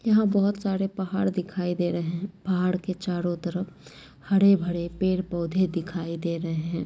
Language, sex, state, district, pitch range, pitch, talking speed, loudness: Angika, female, Bihar, Madhepura, 170-190 Hz, 180 Hz, 160 wpm, -26 LUFS